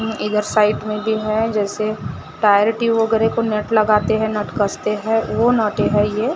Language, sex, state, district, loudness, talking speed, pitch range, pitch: Hindi, male, Maharashtra, Gondia, -18 LUFS, 190 wpm, 210-225 Hz, 215 Hz